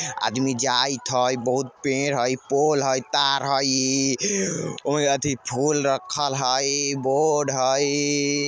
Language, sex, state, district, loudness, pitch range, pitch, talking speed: Maithili, male, Bihar, Vaishali, -22 LUFS, 130-145 Hz, 135 Hz, 120 wpm